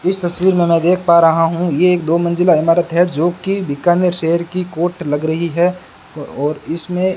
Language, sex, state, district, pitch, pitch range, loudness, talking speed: Hindi, male, Rajasthan, Bikaner, 175 Hz, 165-180 Hz, -15 LUFS, 200 wpm